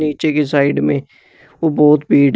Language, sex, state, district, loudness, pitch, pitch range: Hindi, male, Uttar Pradesh, Shamli, -15 LUFS, 150 Hz, 140-150 Hz